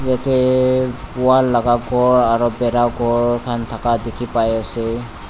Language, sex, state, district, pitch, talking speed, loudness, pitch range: Nagamese, male, Nagaland, Dimapur, 120 Hz, 125 wpm, -17 LUFS, 115-125 Hz